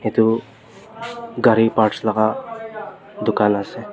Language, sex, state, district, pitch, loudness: Nagamese, male, Nagaland, Dimapur, 115 Hz, -19 LUFS